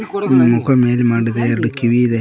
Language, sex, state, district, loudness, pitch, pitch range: Kannada, male, Karnataka, Koppal, -15 LUFS, 120 Hz, 115-130 Hz